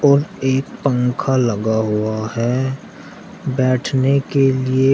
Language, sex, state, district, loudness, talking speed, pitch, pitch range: Hindi, male, Uttar Pradesh, Shamli, -18 LUFS, 110 wpm, 130 Hz, 125-135 Hz